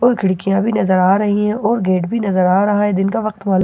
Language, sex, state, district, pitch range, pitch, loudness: Hindi, female, Bihar, Katihar, 190-215 Hz, 200 Hz, -16 LUFS